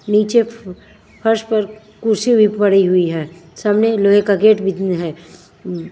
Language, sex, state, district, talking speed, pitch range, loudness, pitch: Hindi, female, Himachal Pradesh, Shimla, 150 wpm, 180-215 Hz, -15 LUFS, 205 Hz